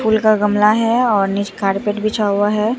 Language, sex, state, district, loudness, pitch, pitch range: Hindi, female, Bihar, Katihar, -16 LUFS, 210 Hz, 205-220 Hz